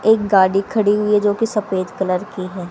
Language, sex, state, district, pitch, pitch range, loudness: Hindi, female, Haryana, Rohtak, 205 Hz, 185-210 Hz, -17 LUFS